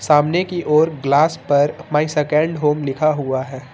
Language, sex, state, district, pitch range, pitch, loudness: Hindi, male, Uttar Pradesh, Lucknow, 140-155 Hz, 150 Hz, -18 LUFS